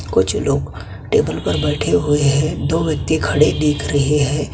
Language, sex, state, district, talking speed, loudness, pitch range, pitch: Hindi, male, Chhattisgarh, Kabirdham, 170 wpm, -17 LUFS, 140-150 Hz, 145 Hz